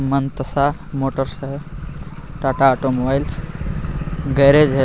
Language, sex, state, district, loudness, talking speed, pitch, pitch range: Hindi, male, Jharkhand, Garhwa, -19 LUFS, 85 wpm, 140 Hz, 135-150 Hz